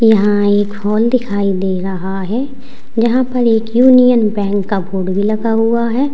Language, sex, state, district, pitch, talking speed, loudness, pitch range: Hindi, female, Uttar Pradesh, Lalitpur, 220 Hz, 175 wpm, -14 LUFS, 200-240 Hz